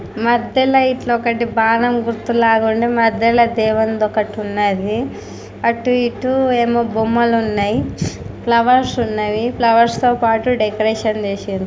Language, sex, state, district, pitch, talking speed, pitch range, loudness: Telugu, female, Telangana, Karimnagar, 230 Hz, 120 wpm, 220-240 Hz, -16 LUFS